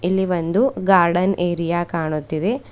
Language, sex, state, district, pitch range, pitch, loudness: Kannada, female, Karnataka, Bidar, 170-190 Hz, 175 Hz, -19 LUFS